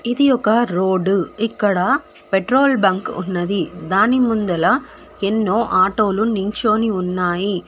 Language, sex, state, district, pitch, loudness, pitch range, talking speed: Telugu, female, Telangana, Hyderabad, 210 Hz, -18 LUFS, 185-240 Hz, 100 wpm